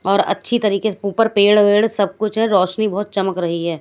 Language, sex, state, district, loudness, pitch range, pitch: Hindi, female, Haryana, Charkhi Dadri, -17 LUFS, 195-215 Hz, 200 Hz